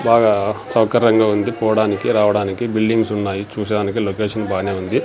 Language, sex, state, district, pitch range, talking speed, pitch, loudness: Telugu, male, Andhra Pradesh, Sri Satya Sai, 100-110 Hz, 130 wpm, 105 Hz, -17 LUFS